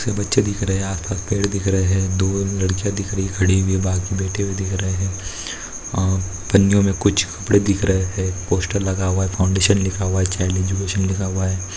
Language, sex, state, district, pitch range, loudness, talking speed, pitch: Hindi, male, Maharashtra, Nagpur, 95-100 Hz, -20 LUFS, 220 wpm, 95 Hz